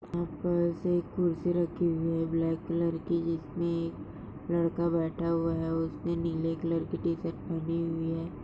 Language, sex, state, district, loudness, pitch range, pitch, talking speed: Hindi, female, Maharashtra, Sindhudurg, -31 LUFS, 165-170 Hz, 165 Hz, 170 wpm